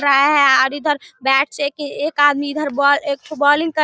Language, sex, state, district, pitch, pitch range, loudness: Hindi, female, Bihar, Darbhanga, 285 Hz, 280-295 Hz, -16 LUFS